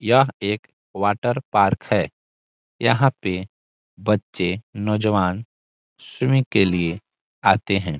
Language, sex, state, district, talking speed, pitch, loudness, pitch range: Hindi, male, Bihar, Saran, 105 wpm, 100 Hz, -21 LUFS, 90-115 Hz